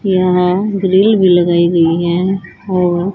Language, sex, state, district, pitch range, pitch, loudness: Hindi, female, Haryana, Charkhi Dadri, 175-190 Hz, 180 Hz, -13 LUFS